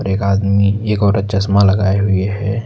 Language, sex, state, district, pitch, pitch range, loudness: Hindi, male, Uttar Pradesh, Lucknow, 100 Hz, 95-100 Hz, -15 LUFS